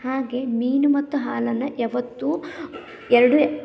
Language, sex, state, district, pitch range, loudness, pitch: Kannada, female, Karnataka, Belgaum, 245-295 Hz, -21 LUFS, 265 Hz